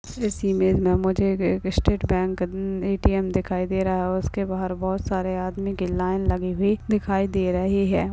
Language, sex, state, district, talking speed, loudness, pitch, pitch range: Hindi, female, Maharashtra, Dhule, 200 wpm, -24 LUFS, 185 Hz, 180-195 Hz